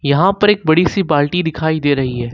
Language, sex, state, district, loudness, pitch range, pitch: Hindi, male, Jharkhand, Ranchi, -15 LUFS, 145-180 Hz, 155 Hz